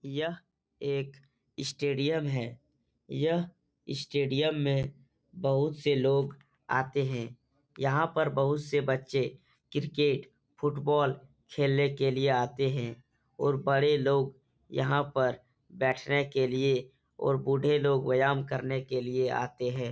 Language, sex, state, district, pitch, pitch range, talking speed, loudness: Hindi, male, Bihar, Supaul, 135 Hz, 130-145 Hz, 130 wpm, -30 LUFS